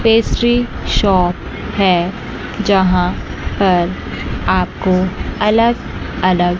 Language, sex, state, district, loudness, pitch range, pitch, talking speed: Hindi, female, Chandigarh, Chandigarh, -16 LUFS, 180-215 Hz, 190 Hz, 75 wpm